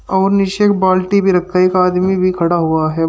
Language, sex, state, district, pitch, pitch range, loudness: Hindi, male, Uttar Pradesh, Shamli, 185 Hz, 175-190 Hz, -14 LUFS